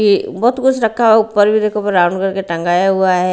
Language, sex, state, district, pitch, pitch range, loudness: Hindi, female, Bihar, Patna, 205 Hz, 185-220 Hz, -14 LUFS